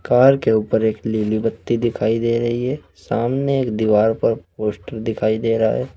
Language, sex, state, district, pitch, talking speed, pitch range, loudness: Hindi, male, Uttar Pradesh, Saharanpur, 115 Hz, 190 wpm, 110-120 Hz, -19 LUFS